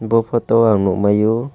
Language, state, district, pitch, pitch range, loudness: Kokborok, Tripura, West Tripura, 110 Hz, 105-115 Hz, -16 LUFS